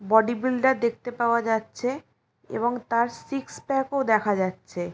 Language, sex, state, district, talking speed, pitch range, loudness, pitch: Bengali, female, West Bengal, Jalpaiguri, 145 wpm, 220-255 Hz, -25 LUFS, 235 Hz